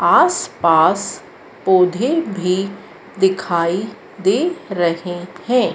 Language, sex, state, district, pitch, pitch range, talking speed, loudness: Hindi, female, Madhya Pradesh, Dhar, 190 Hz, 180-250 Hz, 75 wpm, -17 LUFS